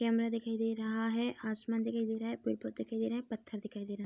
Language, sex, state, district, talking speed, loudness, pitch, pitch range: Hindi, female, Bihar, Bhagalpur, 295 wpm, -36 LUFS, 225 Hz, 210-230 Hz